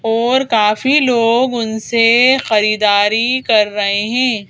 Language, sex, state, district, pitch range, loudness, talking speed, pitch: Hindi, female, Madhya Pradesh, Bhopal, 215-250 Hz, -13 LUFS, 105 wpm, 230 Hz